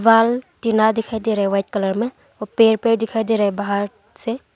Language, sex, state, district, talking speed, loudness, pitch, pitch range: Hindi, female, Arunachal Pradesh, Longding, 235 wpm, -19 LUFS, 220 Hz, 205-225 Hz